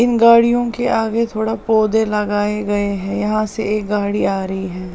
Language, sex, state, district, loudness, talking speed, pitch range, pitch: Hindi, female, Punjab, Pathankot, -17 LUFS, 195 wpm, 205-225 Hz, 215 Hz